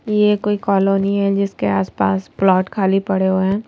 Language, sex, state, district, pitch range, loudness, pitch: Hindi, female, Madhya Pradesh, Bhopal, 185-200 Hz, -17 LUFS, 195 Hz